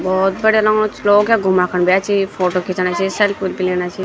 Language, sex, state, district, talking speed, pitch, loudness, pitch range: Garhwali, female, Uttarakhand, Tehri Garhwal, 265 wpm, 190 Hz, -16 LUFS, 185-205 Hz